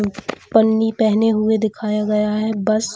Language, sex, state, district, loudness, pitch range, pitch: Hindi, female, Chhattisgarh, Bilaspur, -18 LUFS, 210-220 Hz, 215 Hz